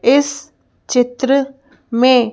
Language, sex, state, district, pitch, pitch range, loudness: Hindi, female, Madhya Pradesh, Bhopal, 265 Hz, 250-280 Hz, -16 LUFS